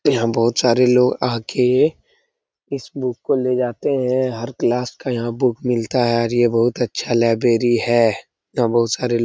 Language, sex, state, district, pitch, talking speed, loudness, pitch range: Hindi, male, Bihar, Darbhanga, 120 Hz, 180 wpm, -18 LUFS, 120-125 Hz